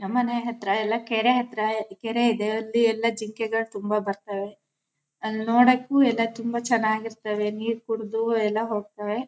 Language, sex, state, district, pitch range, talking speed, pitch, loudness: Kannada, female, Karnataka, Shimoga, 210-235 Hz, 155 wpm, 225 Hz, -25 LUFS